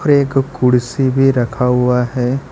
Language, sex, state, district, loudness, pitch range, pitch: Hindi, male, Jharkhand, Ranchi, -15 LUFS, 125-135 Hz, 130 Hz